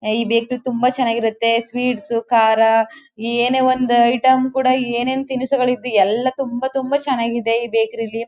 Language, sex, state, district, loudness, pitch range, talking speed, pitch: Kannada, female, Karnataka, Chamarajanagar, -17 LUFS, 230-260 Hz, 145 wpm, 240 Hz